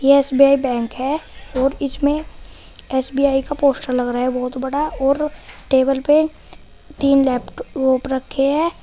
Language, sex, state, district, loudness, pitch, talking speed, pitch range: Hindi, female, Uttar Pradesh, Shamli, -18 LUFS, 275 Hz, 145 wpm, 260-290 Hz